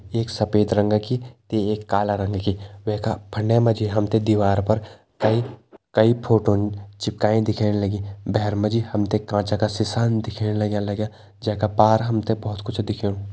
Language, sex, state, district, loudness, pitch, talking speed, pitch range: Hindi, male, Uttarakhand, Tehri Garhwal, -22 LUFS, 105 Hz, 195 wpm, 105-110 Hz